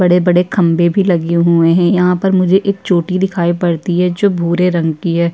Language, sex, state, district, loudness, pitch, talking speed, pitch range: Hindi, female, Uttar Pradesh, Jyotiba Phule Nagar, -13 LUFS, 180 Hz, 215 wpm, 170-185 Hz